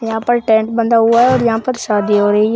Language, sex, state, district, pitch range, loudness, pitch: Hindi, male, Uttar Pradesh, Shamli, 220-235 Hz, -13 LUFS, 225 Hz